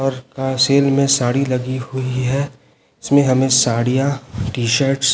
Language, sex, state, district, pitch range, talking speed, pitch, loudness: Hindi, male, Chhattisgarh, Raipur, 125-135 Hz, 165 wpm, 130 Hz, -17 LUFS